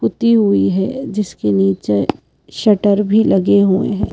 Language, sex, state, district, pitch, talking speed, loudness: Hindi, female, Madhya Pradesh, Bhopal, 200 Hz, 145 wpm, -15 LUFS